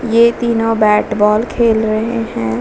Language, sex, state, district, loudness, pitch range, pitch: Hindi, female, Bihar, Vaishali, -14 LUFS, 210-230 Hz, 225 Hz